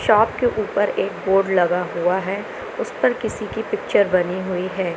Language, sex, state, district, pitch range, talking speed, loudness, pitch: Hindi, female, Madhya Pradesh, Katni, 180-205 Hz, 195 wpm, -21 LUFS, 190 Hz